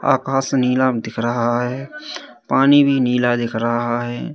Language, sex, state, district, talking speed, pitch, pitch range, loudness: Hindi, male, Madhya Pradesh, Katni, 150 wpm, 125 Hz, 120-135 Hz, -18 LUFS